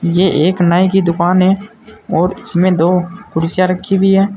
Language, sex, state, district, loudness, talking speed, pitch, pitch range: Hindi, male, Uttar Pradesh, Saharanpur, -13 LUFS, 180 wpm, 185 Hz, 175-195 Hz